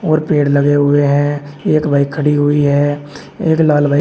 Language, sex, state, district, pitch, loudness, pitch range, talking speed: Hindi, male, Uttar Pradesh, Shamli, 145 Hz, -13 LUFS, 145-150 Hz, 195 wpm